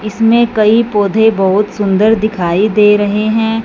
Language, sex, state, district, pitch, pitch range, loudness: Hindi, female, Punjab, Fazilka, 215 Hz, 205-220 Hz, -11 LUFS